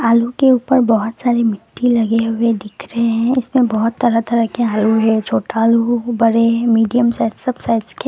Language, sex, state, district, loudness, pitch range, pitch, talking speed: Hindi, female, Assam, Kamrup Metropolitan, -15 LUFS, 225-240 Hz, 230 Hz, 210 wpm